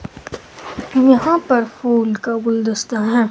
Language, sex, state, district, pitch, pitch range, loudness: Hindi, male, Himachal Pradesh, Shimla, 230 Hz, 225-250 Hz, -16 LUFS